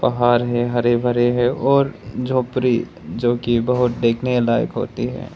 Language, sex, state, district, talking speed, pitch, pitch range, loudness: Hindi, male, Arunachal Pradesh, Lower Dibang Valley, 155 wpm, 120 Hz, 120-125 Hz, -19 LUFS